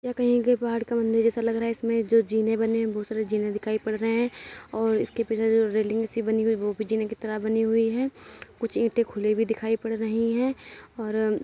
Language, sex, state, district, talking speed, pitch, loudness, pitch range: Hindi, female, Uttar Pradesh, Etah, 255 wpm, 225 Hz, -26 LUFS, 220-230 Hz